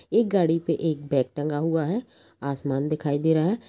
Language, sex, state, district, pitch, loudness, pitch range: Hindi, female, Bihar, Jamui, 160 Hz, -25 LUFS, 145-170 Hz